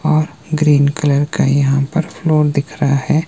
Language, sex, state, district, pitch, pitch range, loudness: Hindi, male, Himachal Pradesh, Shimla, 150 Hz, 140-155 Hz, -15 LUFS